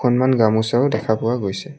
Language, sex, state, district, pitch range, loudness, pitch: Assamese, male, Assam, Kamrup Metropolitan, 110-125 Hz, -18 LUFS, 115 Hz